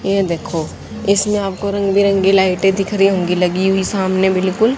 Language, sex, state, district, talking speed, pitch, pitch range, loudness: Hindi, female, Haryana, Jhajjar, 175 wpm, 195 Hz, 185-200 Hz, -16 LUFS